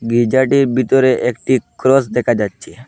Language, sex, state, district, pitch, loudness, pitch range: Bengali, male, Assam, Hailakandi, 125 Hz, -15 LUFS, 120-130 Hz